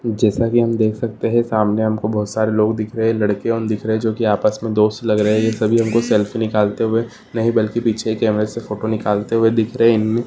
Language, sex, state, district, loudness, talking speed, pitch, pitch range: Hindi, male, West Bengal, Purulia, -18 LUFS, 255 wpm, 110 Hz, 105-115 Hz